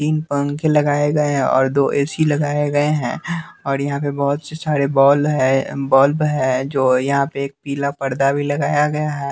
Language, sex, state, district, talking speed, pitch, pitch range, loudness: Hindi, male, Bihar, West Champaran, 200 wpm, 140 Hz, 140-150 Hz, -18 LUFS